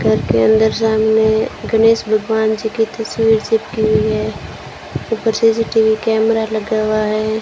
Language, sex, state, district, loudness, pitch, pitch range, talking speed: Hindi, female, Rajasthan, Bikaner, -15 LUFS, 220 Hz, 215-225 Hz, 145 wpm